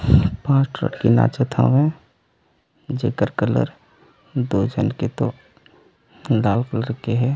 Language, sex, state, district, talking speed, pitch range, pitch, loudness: Chhattisgarhi, male, Chhattisgarh, Raigarh, 120 wpm, 110-135 Hz, 120 Hz, -20 LUFS